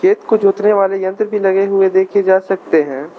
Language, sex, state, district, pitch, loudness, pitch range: Hindi, male, Arunachal Pradesh, Lower Dibang Valley, 195 Hz, -14 LUFS, 190-205 Hz